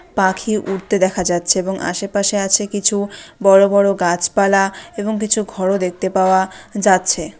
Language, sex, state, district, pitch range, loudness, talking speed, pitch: Bengali, female, West Bengal, Dakshin Dinajpur, 190-205 Hz, -16 LUFS, 145 wpm, 195 Hz